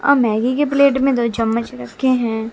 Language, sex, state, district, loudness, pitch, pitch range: Hindi, female, Haryana, Jhajjar, -17 LUFS, 240 Hz, 225-270 Hz